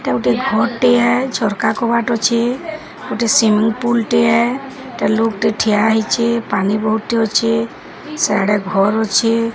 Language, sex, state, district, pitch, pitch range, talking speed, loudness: Odia, male, Odisha, Sambalpur, 230 Hz, 220-235 Hz, 145 wpm, -16 LUFS